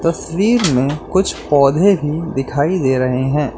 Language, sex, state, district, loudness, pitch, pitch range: Hindi, male, Uttar Pradesh, Lalitpur, -16 LUFS, 150 Hz, 135-180 Hz